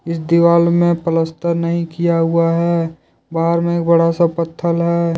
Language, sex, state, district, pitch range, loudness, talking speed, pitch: Hindi, male, Jharkhand, Deoghar, 165-170 Hz, -16 LUFS, 175 wpm, 170 Hz